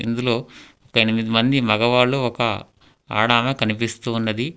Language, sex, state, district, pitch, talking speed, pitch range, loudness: Telugu, male, Telangana, Hyderabad, 120 Hz, 105 wpm, 115-125 Hz, -19 LUFS